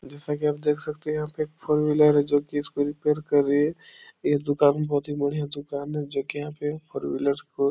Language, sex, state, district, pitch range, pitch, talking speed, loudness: Hindi, male, Bihar, Supaul, 145-150 Hz, 145 Hz, 255 wpm, -25 LUFS